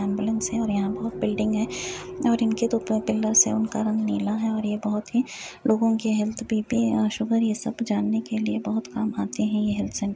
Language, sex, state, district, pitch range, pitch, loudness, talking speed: Hindi, female, Uttar Pradesh, Jyotiba Phule Nagar, 210-225 Hz, 220 Hz, -25 LUFS, 225 wpm